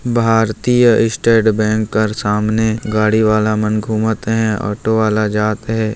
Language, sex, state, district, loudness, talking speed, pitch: Hindi, male, Chhattisgarh, Jashpur, -15 LUFS, 160 wpm, 110 Hz